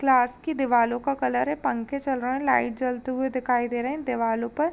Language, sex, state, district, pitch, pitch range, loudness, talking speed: Hindi, female, Uttar Pradesh, Jalaun, 255 Hz, 240-275 Hz, -25 LUFS, 240 wpm